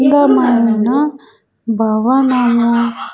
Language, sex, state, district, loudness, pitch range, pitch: Telugu, female, Andhra Pradesh, Sri Satya Sai, -13 LUFS, 230-265 Hz, 245 Hz